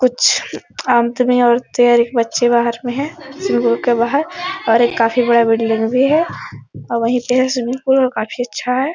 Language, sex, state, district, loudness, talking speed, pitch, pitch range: Hindi, female, Bihar, Araria, -15 LUFS, 170 wpm, 245 Hz, 235-260 Hz